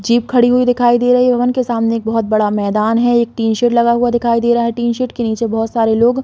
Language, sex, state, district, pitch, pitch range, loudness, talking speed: Hindi, female, Chhattisgarh, Bilaspur, 235 Hz, 225-245 Hz, -14 LUFS, 300 wpm